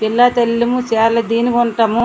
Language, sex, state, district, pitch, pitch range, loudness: Telugu, female, Andhra Pradesh, Srikakulam, 235 Hz, 225-240 Hz, -14 LUFS